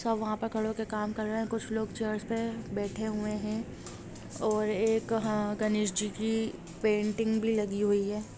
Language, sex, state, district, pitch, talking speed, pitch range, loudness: Hindi, female, Jharkhand, Jamtara, 215 Hz, 180 wpm, 210-220 Hz, -31 LUFS